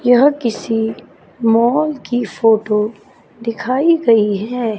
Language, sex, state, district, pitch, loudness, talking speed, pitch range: Hindi, female, Chandigarh, Chandigarh, 230 Hz, -16 LUFS, 100 wpm, 220-250 Hz